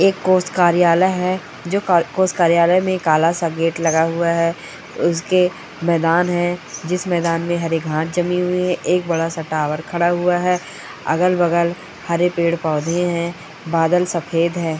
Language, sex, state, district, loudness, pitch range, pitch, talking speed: Hindi, male, Rajasthan, Churu, -18 LUFS, 165-180 Hz, 170 Hz, 165 wpm